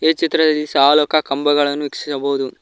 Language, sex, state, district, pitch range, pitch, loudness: Kannada, male, Karnataka, Koppal, 140-155 Hz, 145 Hz, -16 LUFS